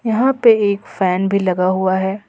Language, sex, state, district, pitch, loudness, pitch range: Hindi, female, Jharkhand, Ranchi, 200 Hz, -16 LUFS, 185-220 Hz